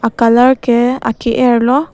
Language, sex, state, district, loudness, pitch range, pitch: Karbi, female, Assam, Karbi Anglong, -12 LUFS, 235-255 Hz, 245 Hz